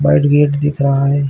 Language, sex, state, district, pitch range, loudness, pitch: Hindi, male, Chhattisgarh, Bilaspur, 140-145 Hz, -13 LUFS, 140 Hz